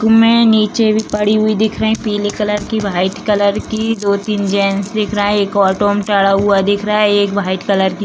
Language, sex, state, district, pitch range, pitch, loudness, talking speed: Hindi, female, Bihar, Sitamarhi, 200-215 Hz, 205 Hz, -14 LUFS, 215 wpm